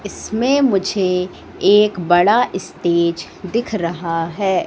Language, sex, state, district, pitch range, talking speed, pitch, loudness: Hindi, female, Madhya Pradesh, Katni, 175-210 Hz, 105 wpm, 190 Hz, -17 LUFS